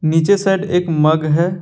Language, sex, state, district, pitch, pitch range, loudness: Hindi, male, Jharkhand, Deoghar, 170 Hz, 160-190 Hz, -15 LUFS